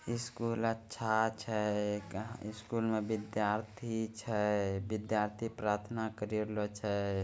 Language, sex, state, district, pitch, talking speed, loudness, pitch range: Angika, male, Bihar, Begusarai, 110 Hz, 110 wpm, -36 LUFS, 105-110 Hz